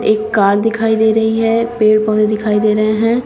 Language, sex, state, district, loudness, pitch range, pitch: Hindi, female, Uttar Pradesh, Shamli, -13 LUFS, 215-225 Hz, 215 Hz